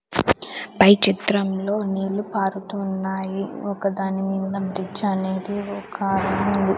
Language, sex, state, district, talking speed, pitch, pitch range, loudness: Telugu, female, Andhra Pradesh, Sri Satya Sai, 115 wpm, 195 Hz, 190-200 Hz, -22 LUFS